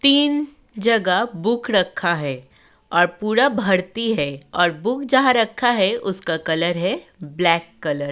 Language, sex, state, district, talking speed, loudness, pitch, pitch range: Hindi, female, Uttar Pradesh, Jyotiba Phule Nagar, 150 wpm, -19 LUFS, 190 Hz, 170-240 Hz